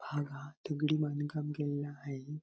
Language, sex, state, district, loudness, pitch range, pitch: Marathi, male, Maharashtra, Sindhudurg, -37 LUFS, 145-150 Hz, 145 Hz